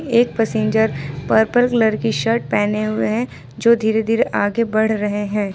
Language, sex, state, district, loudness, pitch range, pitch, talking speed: Hindi, female, Jharkhand, Ranchi, -18 LUFS, 210-230 Hz, 220 Hz, 175 wpm